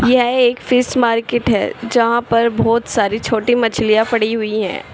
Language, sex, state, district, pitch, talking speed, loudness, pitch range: Hindi, female, Uttar Pradesh, Shamli, 235 Hz, 170 wpm, -15 LUFS, 225-245 Hz